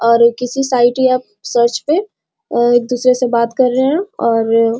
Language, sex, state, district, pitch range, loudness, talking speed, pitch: Hindi, female, Bihar, Muzaffarpur, 235-260 Hz, -14 LUFS, 200 wpm, 245 Hz